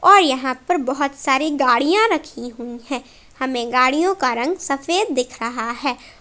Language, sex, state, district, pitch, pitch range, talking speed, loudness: Hindi, female, Jharkhand, Palamu, 265 Hz, 250-325 Hz, 165 wpm, -19 LUFS